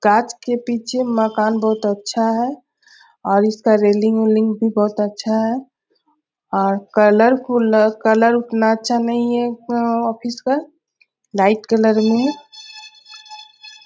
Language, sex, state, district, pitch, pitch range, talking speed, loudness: Hindi, female, Bihar, Bhagalpur, 230 Hz, 220-260 Hz, 130 wpm, -17 LUFS